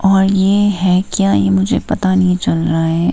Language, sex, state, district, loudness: Hindi, female, Himachal Pradesh, Shimla, -14 LUFS